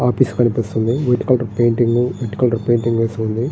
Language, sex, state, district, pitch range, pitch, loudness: Telugu, male, Andhra Pradesh, Srikakulam, 115-125 Hz, 120 Hz, -17 LUFS